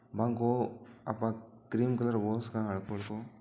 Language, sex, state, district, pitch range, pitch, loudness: Marwari, male, Rajasthan, Churu, 110-120 Hz, 115 Hz, -34 LUFS